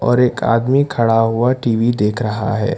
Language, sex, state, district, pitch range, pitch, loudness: Hindi, male, Karnataka, Bangalore, 115-125 Hz, 115 Hz, -16 LUFS